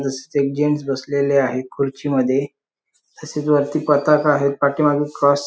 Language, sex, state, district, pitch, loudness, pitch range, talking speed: Marathi, male, Maharashtra, Sindhudurg, 140 Hz, -19 LUFS, 140-150 Hz, 130 wpm